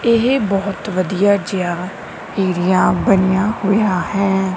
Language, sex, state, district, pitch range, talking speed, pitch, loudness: Punjabi, female, Punjab, Kapurthala, 185-205 Hz, 105 wpm, 195 Hz, -17 LUFS